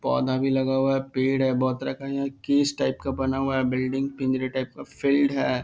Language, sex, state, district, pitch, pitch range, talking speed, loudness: Hindi, male, Bihar, Darbhanga, 135 Hz, 130-135 Hz, 235 wpm, -25 LUFS